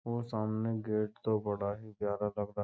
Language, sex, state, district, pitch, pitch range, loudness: Hindi, male, Uttar Pradesh, Jyotiba Phule Nagar, 105 Hz, 105-110 Hz, -35 LUFS